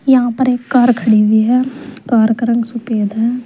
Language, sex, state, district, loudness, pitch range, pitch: Hindi, female, Uttar Pradesh, Saharanpur, -14 LUFS, 220-250 Hz, 235 Hz